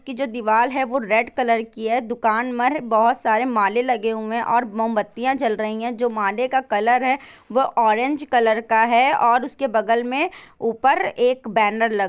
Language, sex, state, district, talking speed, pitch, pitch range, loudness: Hindi, female, Bihar, Gopalganj, 205 wpm, 235 Hz, 225-255 Hz, -20 LUFS